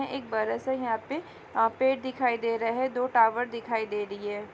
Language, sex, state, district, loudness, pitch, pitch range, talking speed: Hindi, female, Chhattisgarh, Raigarh, -28 LUFS, 235 Hz, 225-260 Hz, 225 wpm